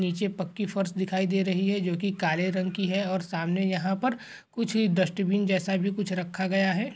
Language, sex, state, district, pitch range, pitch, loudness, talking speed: Hindi, male, Uttar Pradesh, Jalaun, 185-200 Hz, 190 Hz, -27 LUFS, 215 wpm